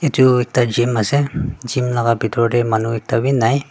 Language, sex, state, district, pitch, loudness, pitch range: Nagamese, female, Nagaland, Dimapur, 125 Hz, -17 LUFS, 115-135 Hz